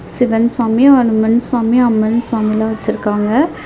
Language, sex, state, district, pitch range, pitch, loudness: Tamil, female, Tamil Nadu, Nilgiris, 220-245 Hz, 230 Hz, -13 LUFS